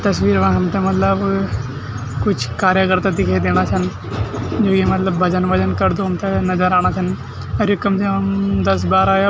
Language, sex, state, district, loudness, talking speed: Garhwali, male, Uttarakhand, Tehri Garhwal, -17 LUFS, 155 wpm